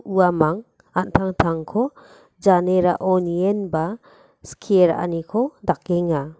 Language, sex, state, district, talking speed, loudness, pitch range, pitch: Garo, female, Meghalaya, West Garo Hills, 65 wpm, -20 LUFS, 165-200 Hz, 180 Hz